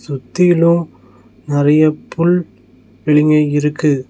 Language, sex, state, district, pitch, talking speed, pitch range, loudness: Tamil, male, Tamil Nadu, Nilgiris, 150 Hz, 75 wpm, 130-165 Hz, -14 LUFS